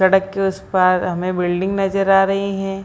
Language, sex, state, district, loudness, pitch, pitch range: Hindi, female, Bihar, Purnia, -18 LUFS, 195 Hz, 185-195 Hz